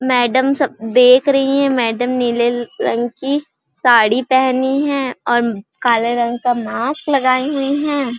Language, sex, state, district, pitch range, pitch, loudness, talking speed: Hindi, female, Chhattisgarh, Balrampur, 240-275 Hz, 255 Hz, -16 LUFS, 155 wpm